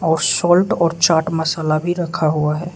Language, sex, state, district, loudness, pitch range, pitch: Hindi, male, Arunachal Pradesh, Lower Dibang Valley, -17 LUFS, 155-175 Hz, 160 Hz